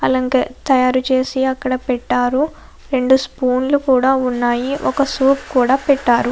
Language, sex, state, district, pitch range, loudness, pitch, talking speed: Telugu, female, Andhra Pradesh, Anantapur, 250-270 Hz, -16 LUFS, 260 Hz, 135 wpm